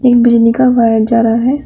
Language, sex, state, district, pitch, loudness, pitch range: Hindi, female, Uttar Pradesh, Shamli, 235 Hz, -10 LUFS, 230-250 Hz